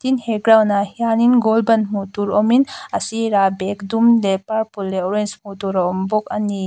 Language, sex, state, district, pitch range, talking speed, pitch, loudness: Mizo, female, Mizoram, Aizawl, 200-225 Hz, 215 wpm, 210 Hz, -18 LUFS